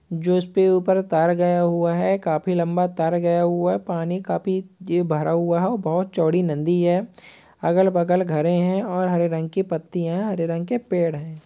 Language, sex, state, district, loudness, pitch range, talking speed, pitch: Hindi, female, Bihar, East Champaran, -21 LUFS, 170-185 Hz, 190 wpm, 175 Hz